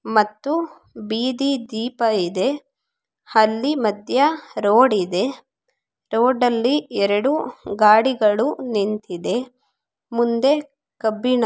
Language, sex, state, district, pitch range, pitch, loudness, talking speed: Kannada, female, Karnataka, Chamarajanagar, 215-275 Hz, 240 Hz, -20 LUFS, 75 wpm